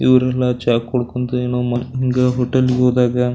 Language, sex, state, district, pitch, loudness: Kannada, male, Karnataka, Belgaum, 125 Hz, -17 LUFS